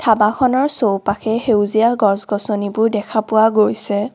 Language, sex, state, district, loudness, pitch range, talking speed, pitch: Assamese, female, Assam, Kamrup Metropolitan, -16 LUFS, 205-225 Hz, 100 wpm, 220 Hz